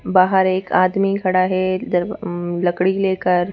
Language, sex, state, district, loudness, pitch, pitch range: Hindi, female, Madhya Pradesh, Bhopal, -18 LUFS, 185 Hz, 180-190 Hz